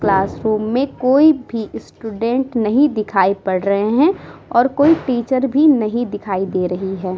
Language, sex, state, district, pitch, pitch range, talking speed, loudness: Hindi, female, Uttar Pradesh, Muzaffarnagar, 225 Hz, 200-265 Hz, 165 wpm, -16 LUFS